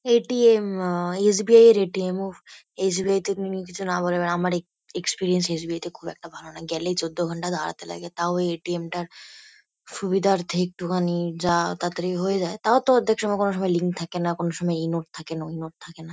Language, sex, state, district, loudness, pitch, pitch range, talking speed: Bengali, female, West Bengal, Kolkata, -23 LUFS, 180 Hz, 170-195 Hz, 270 wpm